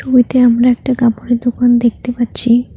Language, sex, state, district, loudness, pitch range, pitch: Bengali, female, West Bengal, Cooch Behar, -13 LUFS, 240-245 Hz, 245 Hz